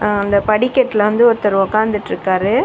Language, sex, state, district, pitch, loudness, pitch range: Tamil, female, Tamil Nadu, Chennai, 210 Hz, -15 LUFS, 200-220 Hz